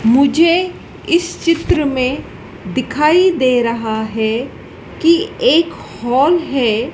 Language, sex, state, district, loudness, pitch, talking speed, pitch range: Hindi, female, Madhya Pradesh, Dhar, -15 LUFS, 280 Hz, 105 wpm, 240-335 Hz